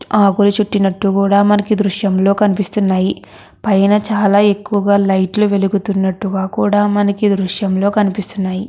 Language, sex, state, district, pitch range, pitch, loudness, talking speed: Telugu, female, Andhra Pradesh, Krishna, 195-205 Hz, 200 Hz, -14 LUFS, 130 wpm